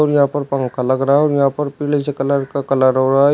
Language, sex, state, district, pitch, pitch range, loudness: Hindi, male, Uttar Pradesh, Shamli, 140 Hz, 135-145 Hz, -16 LUFS